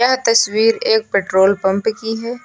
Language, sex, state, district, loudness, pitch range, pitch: Hindi, female, Uttar Pradesh, Lucknow, -15 LUFS, 200-240 Hz, 225 Hz